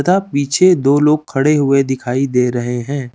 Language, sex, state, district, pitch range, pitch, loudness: Hindi, male, Chandigarh, Chandigarh, 130-150 Hz, 140 Hz, -14 LUFS